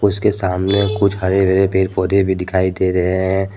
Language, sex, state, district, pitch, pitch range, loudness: Hindi, male, Jharkhand, Deoghar, 95 Hz, 95-100 Hz, -16 LUFS